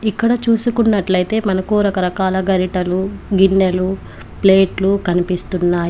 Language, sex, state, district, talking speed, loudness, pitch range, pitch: Telugu, female, Telangana, Komaram Bheem, 80 wpm, -16 LUFS, 185-205 Hz, 190 Hz